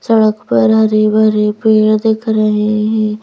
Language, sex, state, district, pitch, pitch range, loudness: Hindi, female, Madhya Pradesh, Bhopal, 215 Hz, 210-220 Hz, -12 LUFS